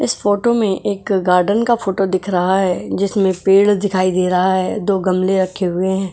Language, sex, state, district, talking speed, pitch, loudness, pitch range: Hindi, female, Goa, North and South Goa, 205 wpm, 190 Hz, -16 LUFS, 185-200 Hz